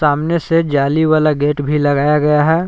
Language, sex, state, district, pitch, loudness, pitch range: Hindi, male, Jharkhand, Palamu, 150 Hz, -14 LUFS, 145-160 Hz